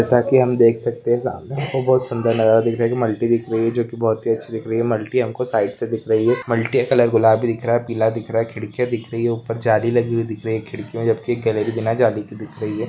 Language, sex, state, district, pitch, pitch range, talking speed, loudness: Hindi, male, Maharashtra, Solapur, 115 Hz, 110-120 Hz, 300 wpm, -19 LUFS